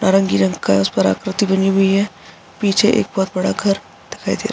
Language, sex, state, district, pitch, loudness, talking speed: Hindi, female, Bihar, Araria, 195 Hz, -17 LUFS, 225 wpm